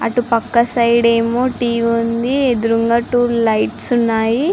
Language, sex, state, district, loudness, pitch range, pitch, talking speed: Telugu, female, Andhra Pradesh, Srikakulam, -15 LUFS, 230-245 Hz, 235 Hz, 130 wpm